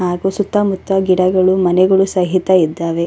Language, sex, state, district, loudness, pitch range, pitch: Kannada, female, Karnataka, Raichur, -14 LUFS, 180-190 Hz, 185 Hz